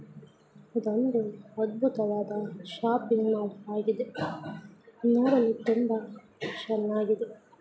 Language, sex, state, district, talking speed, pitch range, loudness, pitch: Kannada, female, Karnataka, Mysore, 65 wpm, 210-230 Hz, -29 LUFS, 220 Hz